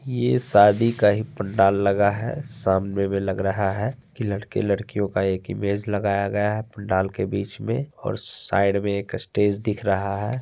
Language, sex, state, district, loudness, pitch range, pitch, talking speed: Hindi, male, Bihar, Gopalganj, -23 LUFS, 100-110 Hz, 100 Hz, 190 wpm